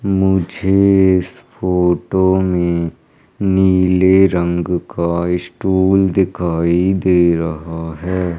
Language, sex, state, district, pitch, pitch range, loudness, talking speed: Hindi, male, Madhya Pradesh, Umaria, 90 Hz, 85-95 Hz, -15 LUFS, 85 wpm